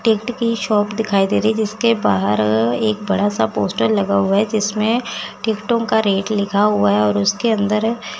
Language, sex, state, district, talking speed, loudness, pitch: Hindi, female, Chandigarh, Chandigarh, 175 wpm, -17 LUFS, 205 Hz